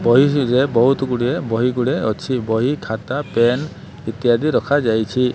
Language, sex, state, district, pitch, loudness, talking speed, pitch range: Odia, male, Odisha, Malkangiri, 125 Hz, -18 LUFS, 110 wpm, 115-140 Hz